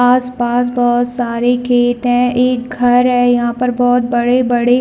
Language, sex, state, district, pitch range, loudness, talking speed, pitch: Hindi, female, Chhattisgarh, Bilaspur, 245-250 Hz, -14 LUFS, 150 wpm, 245 Hz